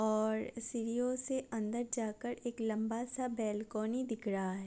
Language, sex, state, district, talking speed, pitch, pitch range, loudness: Hindi, female, Bihar, Gopalganj, 165 wpm, 230 Hz, 215-245 Hz, -38 LUFS